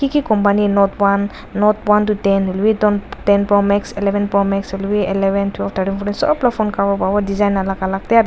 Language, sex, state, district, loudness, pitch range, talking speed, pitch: Nagamese, female, Nagaland, Dimapur, -16 LUFS, 195-210 Hz, 220 wpm, 200 Hz